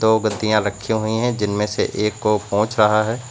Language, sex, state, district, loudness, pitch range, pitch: Hindi, male, Uttar Pradesh, Lucknow, -19 LUFS, 105-110 Hz, 110 Hz